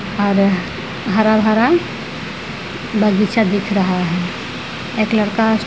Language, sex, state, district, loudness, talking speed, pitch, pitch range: Hindi, female, Bihar, Vaishali, -17 LUFS, 95 wpm, 210 Hz, 195-220 Hz